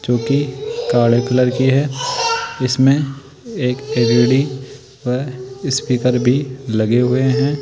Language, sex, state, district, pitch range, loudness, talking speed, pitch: Hindi, male, Rajasthan, Jaipur, 125-140 Hz, -17 LUFS, 120 wpm, 130 Hz